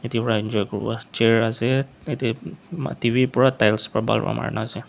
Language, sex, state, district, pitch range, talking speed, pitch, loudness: Nagamese, male, Nagaland, Dimapur, 110-125 Hz, 210 wpm, 115 Hz, -22 LUFS